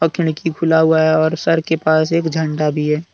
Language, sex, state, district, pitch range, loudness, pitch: Hindi, male, Jharkhand, Deoghar, 155-165 Hz, -16 LUFS, 160 Hz